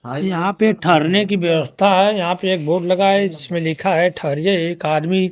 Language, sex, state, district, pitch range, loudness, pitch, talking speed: Hindi, male, Bihar, Kaimur, 165-195 Hz, -17 LUFS, 180 Hz, 215 wpm